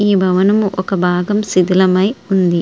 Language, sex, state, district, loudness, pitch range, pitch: Telugu, female, Andhra Pradesh, Srikakulam, -14 LUFS, 185-205 Hz, 190 Hz